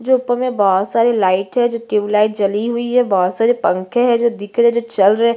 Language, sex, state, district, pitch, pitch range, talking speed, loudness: Hindi, female, Chhattisgarh, Bastar, 230 Hz, 205-240 Hz, 280 wpm, -16 LUFS